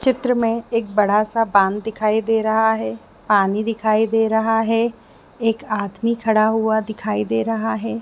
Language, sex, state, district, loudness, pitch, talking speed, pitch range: Hindi, female, Chhattisgarh, Bilaspur, -19 LUFS, 220 Hz, 150 wpm, 205-225 Hz